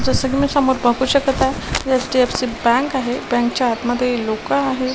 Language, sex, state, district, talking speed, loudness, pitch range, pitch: Marathi, female, Maharashtra, Washim, 180 wpm, -18 LUFS, 240-265 Hz, 255 Hz